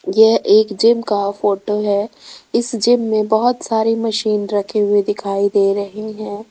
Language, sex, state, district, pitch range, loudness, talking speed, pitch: Hindi, female, Rajasthan, Jaipur, 205-225 Hz, -16 LUFS, 165 wpm, 215 Hz